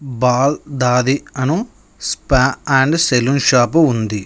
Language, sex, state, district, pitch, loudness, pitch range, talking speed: Telugu, male, Telangana, Mahabubabad, 135 Hz, -15 LUFS, 125-145 Hz, 115 wpm